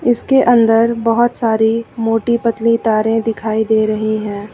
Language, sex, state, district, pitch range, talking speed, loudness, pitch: Hindi, female, Uttar Pradesh, Lucknow, 220-235 Hz, 145 wpm, -14 LUFS, 225 Hz